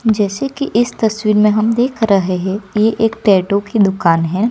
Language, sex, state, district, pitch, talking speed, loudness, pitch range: Hindi, female, Gujarat, Gandhinagar, 210 Hz, 200 wpm, -15 LUFS, 195-225 Hz